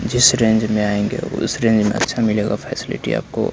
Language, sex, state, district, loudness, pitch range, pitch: Hindi, male, Bihar, Kaimur, -18 LUFS, 105-115 Hz, 110 Hz